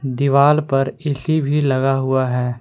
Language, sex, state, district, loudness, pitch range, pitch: Hindi, male, Jharkhand, Palamu, -17 LUFS, 130-145 Hz, 135 Hz